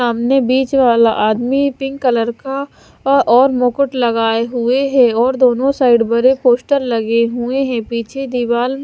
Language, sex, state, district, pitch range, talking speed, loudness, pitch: Hindi, female, Himachal Pradesh, Shimla, 235-270 Hz, 165 wpm, -14 LUFS, 250 Hz